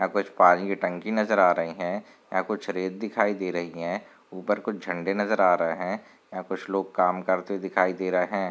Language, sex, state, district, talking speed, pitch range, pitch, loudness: Hindi, male, Maharashtra, Nagpur, 225 wpm, 90-100 Hz, 95 Hz, -26 LUFS